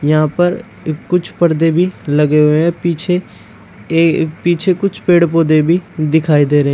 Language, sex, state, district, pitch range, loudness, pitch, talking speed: Hindi, male, Uttar Pradesh, Shamli, 150-175 Hz, -14 LUFS, 165 Hz, 180 wpm